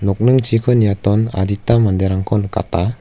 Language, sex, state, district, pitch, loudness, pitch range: Garo, male, Meghalaya, West Garo Hills, 105 Hz, -16 LUFS, 100-115 Hz